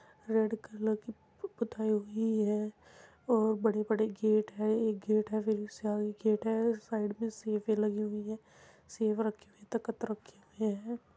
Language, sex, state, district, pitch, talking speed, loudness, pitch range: Hindi, female, Uttar Pradesh, Muzaffarnagar, 215 Hz, 175 wpm, -33 LUFS, 215-225 Hz